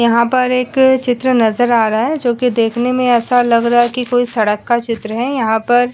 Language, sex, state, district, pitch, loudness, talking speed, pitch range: Hindi, female, Uttar Pradesh, Muzaffarnagar, 240 Hz, -14 LUFS, 245 wpm, 230-250 Hz